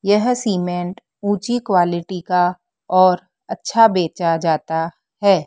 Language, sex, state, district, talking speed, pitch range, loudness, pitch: Hindi, female, Madhya Pradesh, Dhar, 110 wpm, 175-205 Hz, -18 LUFS, 180 Hz